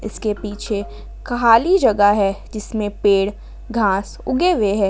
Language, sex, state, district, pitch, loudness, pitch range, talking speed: Hindi, female, Jharkhand, Ranchi, 210 Hz, -18 LUFS, 200-230 Hz, 135 wpm